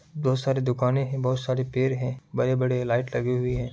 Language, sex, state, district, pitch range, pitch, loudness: Hindi, male, Bihar, Kishanganj, 125-130 Hz, 130 Hz, -26 LUFS